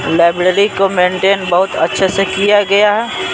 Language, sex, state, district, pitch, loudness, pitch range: Hindi, male, Bihar, Patna, 195 Hz, -12 LUFS, 185-205 Hz